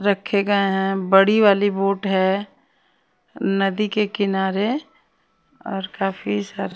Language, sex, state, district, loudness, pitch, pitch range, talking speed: Hindi, female, Odisha, Nuapada, -20 LUFS, 195 Hz, 195-205 Hz, 115 wpm